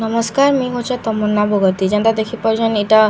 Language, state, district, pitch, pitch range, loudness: Sambalpuri, Odisha, Sambalpur, 225 Hz, 210-235 Hz, -16 LUFS